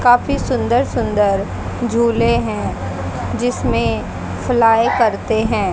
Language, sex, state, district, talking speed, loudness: Hindi, female, Haryana, Jhajjar, 95 wpm, -17 LUFS